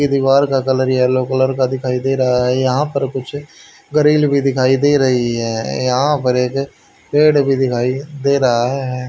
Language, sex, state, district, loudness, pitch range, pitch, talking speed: Hindi, male, Haryana, Charkhi Dadri, -15 LUFS, 125-140 Hz, 130 Hz, 190 wpm